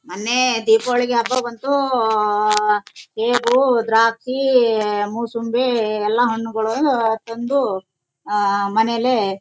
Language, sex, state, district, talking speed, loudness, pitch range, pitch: Kannada, female, Karnataka, Shimoga, 90 wpm, -18 LUFS, 210-245 Hz, 230 Hz